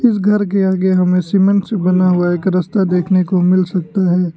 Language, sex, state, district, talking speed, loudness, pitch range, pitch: Hindi, male, Arunachal Pradesh, Lower Dibang Valley, 205 wpm, -14 LUFS, 180-195 Hz, 185 Hz